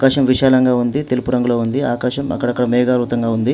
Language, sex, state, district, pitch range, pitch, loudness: Telugu, male, Telangana, Adilabad, 120-130 Hz, 125 Hz, -16 LUFS